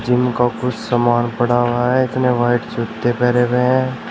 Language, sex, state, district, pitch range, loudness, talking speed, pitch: Hindi, male, Uttar Pradesh, Shamli, 120-125 Hz, -17 LUFS, 190 wpm, 120 Hz